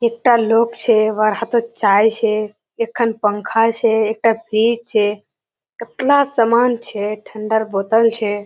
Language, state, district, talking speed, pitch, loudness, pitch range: Surjapuri, Bihar, Kishanganj, 135 wpm, 225 Hz, -16 LUFS, 215-235 Hz